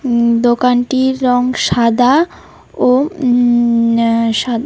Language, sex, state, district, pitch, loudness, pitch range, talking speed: Bengali, female, West Bengal, Paschim Medinipur, 245 Hz, -13 LUFS, 235-255 Hz, 90 wpm